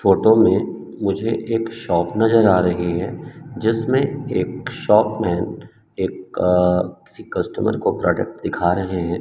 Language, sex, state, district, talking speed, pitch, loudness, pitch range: Hindi, male, Madhya Pradesh, Umaria, 145 wpm, 105 Hz, -19 LUFS, 90-115 Hz